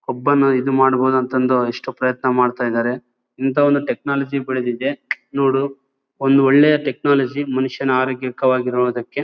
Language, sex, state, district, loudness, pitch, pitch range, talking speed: Kannada, male, Karnataka, Bellary, -18 LUFS, 130 Hz, 125-140 Hz, 130 wpm